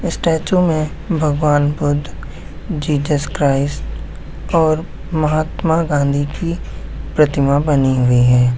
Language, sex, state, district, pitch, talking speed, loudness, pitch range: Hindi, male, Bihar, Muzaffarpur, 150 Hz, 100 wpm, -17 LUFS, 140-160 Hz